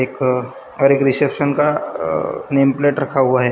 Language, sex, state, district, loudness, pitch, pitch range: Hindi, male, Maharashtra, Gondia, -17 LUFS, 135 Hz, 130-145 Hz